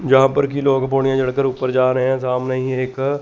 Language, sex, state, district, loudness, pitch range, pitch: Hindi, male, Chandigarh, Chandigarh, -18 LUFS, 130-135 Hz, 130 Hz